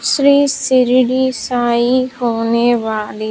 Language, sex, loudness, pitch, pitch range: Hindi, female, -14 LUFS, 250 Hz, 235-260 Hz